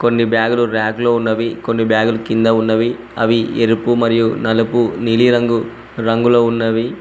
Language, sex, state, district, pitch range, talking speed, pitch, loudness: Telugu, male, Telangana, Mahabubabad, 115-120 Hz, 135 wpm, 115 Hz, -15 LUFS